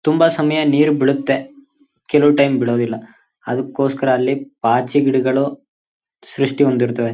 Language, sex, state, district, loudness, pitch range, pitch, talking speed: Kannada, male, Karnataka, Chamarajanagar, -17 LUFS, 130-145 Hz, 135 Hz, 110 wpm